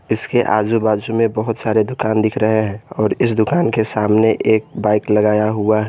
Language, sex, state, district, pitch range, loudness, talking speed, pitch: Hindi, male, Jharkhand, Garhwa, 105-110 Hz, -16 LUFS, 195 wpm, 110 Hz